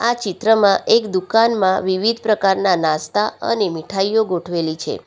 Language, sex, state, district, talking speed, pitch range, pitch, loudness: Gujarati, female, Gujarat, Valsad, 130 wpm, 180-220 Hz, 195 Hz, -17 LUFS